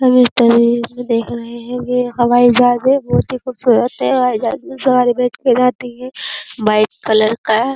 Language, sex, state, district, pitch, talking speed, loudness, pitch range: Hindi, female, Uttar Pradesh, Jyotiba Phule Nagar, 245 Hz, 210 wpm, -14 LUFS, 235-250 Hz